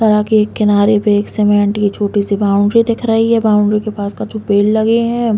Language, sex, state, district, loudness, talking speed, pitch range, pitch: Bundeli, female, Uttar Pradesh, Hamirpur, -13 LUFS, 210 wpm, 205-220 Hz, 210 Hz